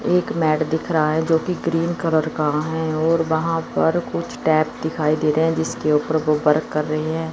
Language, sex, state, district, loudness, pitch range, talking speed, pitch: Hindi, female, Chandigarh, Chandigarh, -20 LUFS, 155-165 Hz, 220 wpm, 160 Hz